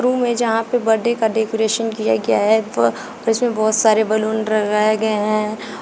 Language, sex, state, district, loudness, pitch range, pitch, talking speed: Hindi, female, Uttar Pradesh, Shamli, -18 LUFS, 215-225 Hz, 220 Hz, 185 wpm